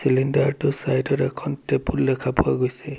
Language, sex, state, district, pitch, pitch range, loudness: Assamese, male, Assam, Sonitpur, 130 Hz, 130-140 Hz, -22 LUFS